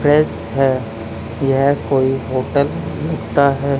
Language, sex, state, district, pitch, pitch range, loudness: Hindi, male, Haryana, Charkhi Dadri, 135 Hz, 115-140 Hz, -18 LUFS